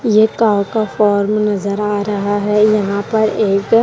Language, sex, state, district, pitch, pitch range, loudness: Hindi, female, Haryana, Rohtak, 210 Hz, 205-215 Hz, -15 LUFS